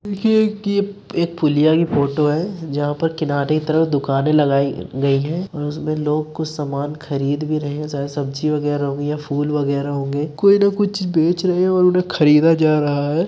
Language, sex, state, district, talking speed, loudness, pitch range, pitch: Hindi, male, Uttar Pradesh, Muzaffarnagar, 200 wpm, -18 LUFS, 145-170 Hz, 150 Hz